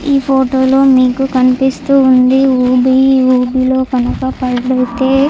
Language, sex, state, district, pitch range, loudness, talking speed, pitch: Telugu, female, Andhra Pradesh, Chittoor, 255-265 Hz, -11 LUFS, 100 wpm, 260 Hz